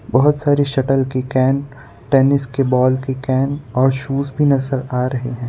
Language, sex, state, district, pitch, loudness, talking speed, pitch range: Hindi, male, Gujarat, Valsad, 135 Hz, -17 LUFS, 185 wpm, 130-140 Hz